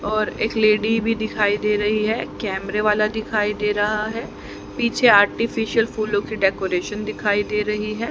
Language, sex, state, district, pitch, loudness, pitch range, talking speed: Hindi, female, Haryana, Charkhi Dadri, 215 Hz, -20 LUFS, 210-220 Hz, 165 wpm